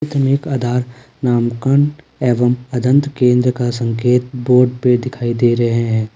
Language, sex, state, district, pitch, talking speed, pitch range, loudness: Hindi, male, Jharkhand, Ranchi, 125 Hz, 145 wpm, 120-130 Hz, -16 LUFS